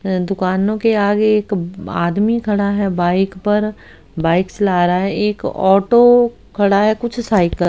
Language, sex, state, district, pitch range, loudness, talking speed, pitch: Hindi, female, Haryana, Rohtak, 185-215 Hz, -16 LUFS, 155 wpm, 200 Hz